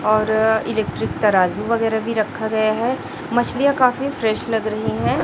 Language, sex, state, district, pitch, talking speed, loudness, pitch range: Hindi, female, Chhattisgarh, Raipur, 220 Hz, 160 wpm, -19 LUFS, 215-230 Hz